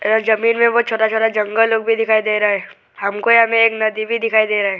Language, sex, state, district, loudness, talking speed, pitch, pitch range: Hindi, male, Arunachal Pradesh, Lower Dibang Valley, -15 LUFS, 290 wpm, 220 Hz, 215-225 Hz